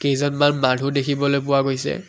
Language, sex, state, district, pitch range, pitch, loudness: Assamese, male, Assam, Kamrup Metropolitan, 140-145 Hz, 140 Hz, -20 LUFS